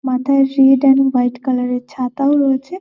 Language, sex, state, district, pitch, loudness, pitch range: Bengali, female, West Bengal, Malda, 270 Hz, -15 LUFS, 255-275 Hz